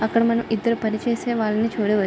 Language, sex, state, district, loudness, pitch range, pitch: Telugu, female, Andhra Pradesh, Srikakulam, -22 LUFS, 215-230 Hz, 225 Hz